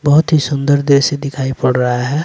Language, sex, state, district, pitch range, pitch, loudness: Hindi, male, Bihar, West Champaran, 130-145 Hz, 140 Hz, -14 LUFS